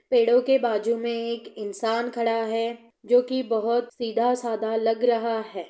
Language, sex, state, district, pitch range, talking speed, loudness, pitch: Hindi, female, Bihar, East Champaran, 225-240 Hz, 160 wpm, -24 LUFS, 230 Hz